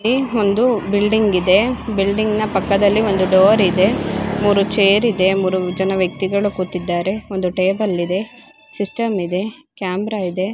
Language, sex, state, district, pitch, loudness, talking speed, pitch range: Kannada, female, Karnataka, Gulbarga, 200 Hz, -17 LUFS, 135 wpm, 185-215 Hz